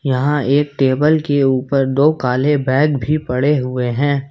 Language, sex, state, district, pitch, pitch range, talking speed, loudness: Hindi, male, Jharkhand, Ranchi, 140 Hz, 130-150 Hz, 165 wpm, -16 LUFS